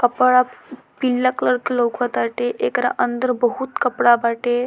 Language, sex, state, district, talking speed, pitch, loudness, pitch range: Bhojpuri, female, Bihar, Muzaffarpur, 140 wpm, 245 Hz, -19 LUFS, 240-250 Hz